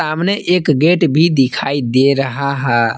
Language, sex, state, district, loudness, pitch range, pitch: Hindi, male, Jharkhand, Palamu, -14 LUFS, 135-165 Hz, 140 Hz